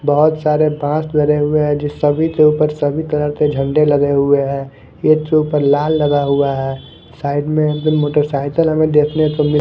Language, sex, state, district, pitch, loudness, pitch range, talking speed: Hindi, male, Haryana, Charkhi Dadri, 150 Hz, -15 LUFS, 145-155 Hz, 205 wpm